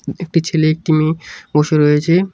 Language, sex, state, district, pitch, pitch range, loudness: Bengali, male, West Bengal, Cooch Behar, 155 Hz, 155-165 Hz, -15 LUFS